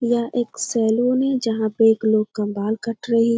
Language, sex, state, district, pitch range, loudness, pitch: Hindi, female, Bihar, Gopalganj, 220-240 Hz, -20 LUFS, 230 Hz